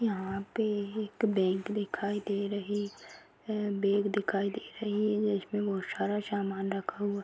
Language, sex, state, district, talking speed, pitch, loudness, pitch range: Hindi, female, Chhattisgarh, Jashpur, 150 wpm, 205 Hz, -32 LUFS, 200-210 Hz